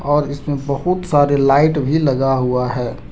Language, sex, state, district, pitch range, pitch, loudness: Hindi, male, Jharkhand, Deoghar, 135-150 Hz, 140 Hz, -16 LUFS